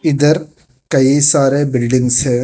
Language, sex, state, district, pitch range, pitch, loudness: Hindi, female, Telangana, Hyderabad, 130-145 Hz, 135 Hz, -13 LUFS